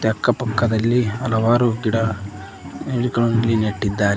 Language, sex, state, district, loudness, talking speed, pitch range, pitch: Kannada, male, Karnataka, Koppal, -20 LUFS, 70 wpm, 105-120 Hz, 115 Hz